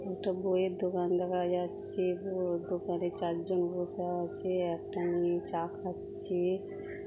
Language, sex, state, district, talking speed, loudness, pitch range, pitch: Bengali, female, West Bengal, Kolkata, 120 wpm, -34 LUFS, 175-190 Hz, 180 Hz